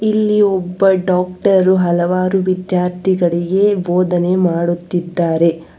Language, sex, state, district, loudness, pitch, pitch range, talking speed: Kannada, female, Karnataka, Bangalore, -15 LUFS, 180 Hz, 175-190 Hz, 70 wpm